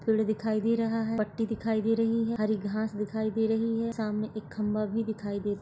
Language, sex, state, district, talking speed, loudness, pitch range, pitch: Hindi, female, Maharashtra, Solapur, 235 wpm, -30 LUFS, 215-225 Hz, 220 Hz